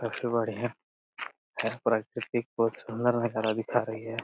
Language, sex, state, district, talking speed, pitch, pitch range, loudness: Hindi, male, Uttar Pradesh, Hamirpur, 140 wpm, 115 Hz, 110-120 Hz, -30 LUFS